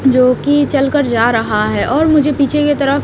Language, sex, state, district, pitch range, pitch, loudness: Hindi, female, Haryana, Rohtak, 245-290 Hz, 275 Hz, -13 LUFS